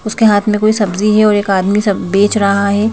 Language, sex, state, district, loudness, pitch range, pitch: Hindi, female, Madhya Pradesh, Bhopal, -12 LUFS, 200-215 Hz, 205 Hz